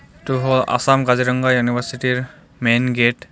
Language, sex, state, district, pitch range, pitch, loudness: Assamese, male, Assam, Kamrup Metropolitan, 125-130 Hz, 125 Hz, -18 LUFS